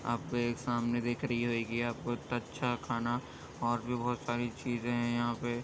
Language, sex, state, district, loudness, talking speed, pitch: Hindi, male, Uttar Pradesh, Jyotiba Phule Nagar, -34 LUFS, 200 wpm, 120 Hz